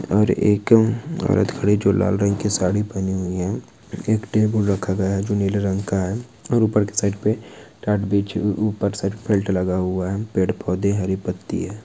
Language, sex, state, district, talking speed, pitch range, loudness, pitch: Hindi, male, Bihar, Saran, 205 wpm, 95-105 Hz, -21 LUFS, 100 Hz